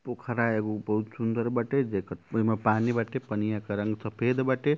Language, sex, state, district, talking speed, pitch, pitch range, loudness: Bhojpuri, male, Uttar Pradesh, Ghazipur, 175 wpm, 115 Hz, 105-120 Hz, -29 LUFS